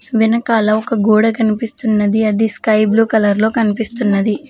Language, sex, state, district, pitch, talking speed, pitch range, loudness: Telugu, female, Telangana, Mahabubabad, 220 Hz, 135 wpm, 215-225 Hz, -14 LUFS